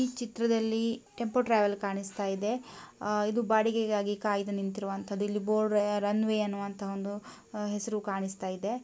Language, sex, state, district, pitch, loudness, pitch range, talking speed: Kannada, female, Karnataka, Mysore, 210 Hz, -31 LUFS, 200-225 Hz, 130 wpm